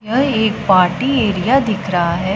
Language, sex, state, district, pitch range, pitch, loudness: Hindi, female, Punjab, Pathankot, 185-250 Hz, 210 Hz, -15 LUFS